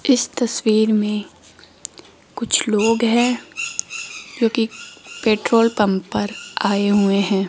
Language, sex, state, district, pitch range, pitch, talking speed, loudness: Hindi, female, Rajasthan, Jaipur, 205-235 Hz, 220 Hz, 105 wpm, -19 LUFS